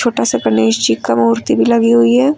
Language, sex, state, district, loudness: Hindi, female, Uttar Pradesh, Lucknow, -13 LUFS